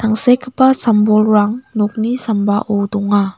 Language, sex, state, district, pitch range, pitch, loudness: Garo, female, Meghalaya, West Garo Hills, 205-235 Hz, 215 Hz, -14 LUFS